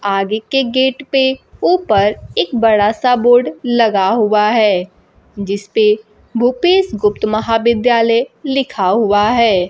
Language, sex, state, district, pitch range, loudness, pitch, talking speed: Hindi, female, Bihar, Kaimur, 210-250 Hz, -14 LUFS, 225 Hz, 115 wpm